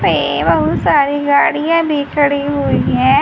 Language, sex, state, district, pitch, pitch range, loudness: Hindi, female, Haryana, Charkhi Dadri, 290 Hz, 285-300 Hz, -14 LUFS